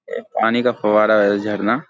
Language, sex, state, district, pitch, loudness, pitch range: Hindi, male, Bihar, Saharsa, 110 Hz, -17 LUFS, 105-125 Hz